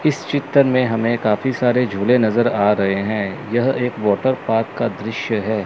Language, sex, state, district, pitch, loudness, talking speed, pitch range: Hindi, male, Chandigarh, Chandigarh, 115 Hz, -18 LUFS, 190 wpm, 105-125 Hz